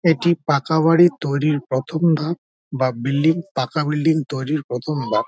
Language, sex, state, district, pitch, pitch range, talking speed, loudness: Bengali, male, West Bengal, Dakshin Dinajpur, 150 Hz, 135-160 Hz, 160 wpm, -19 LUFS